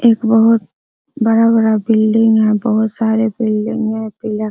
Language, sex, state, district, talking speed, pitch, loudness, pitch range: Hindi, female, Bihar, Araria, 145 wpm, 220 Hz, -14 LUFS, 215-225 Hz